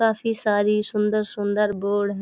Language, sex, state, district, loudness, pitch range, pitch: Hindi, female, Uttar Pradesh, Hamirpur, -23 LUFS, 205-215 Hz, 210 Hz